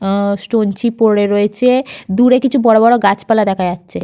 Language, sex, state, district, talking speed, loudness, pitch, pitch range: Bengali, female, Jharkhand, Sahebganj, 150 wpm, -13 LUFS, 215 Hz, 200-235 Hz